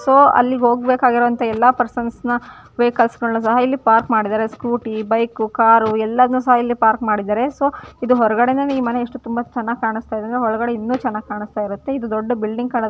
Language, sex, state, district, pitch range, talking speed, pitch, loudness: Kannada, female, Karnataka, Gulbarga, 220-250 Hz, 170 wpm, 240 Hz, -17 LUFS